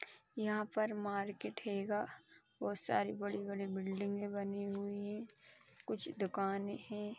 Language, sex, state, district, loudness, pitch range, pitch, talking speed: Hindi, female, Uttar Pradesh, Gorakhpur, -41 LUFS, 200-210 Hz, 205 Hz, 115 wpm